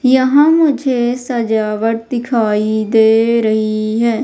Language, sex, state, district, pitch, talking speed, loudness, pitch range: Hindi, female, Madhya Pradesh, Umaria, 230 Hz, 100 wpm, -14 LUFS, 220-255 Hz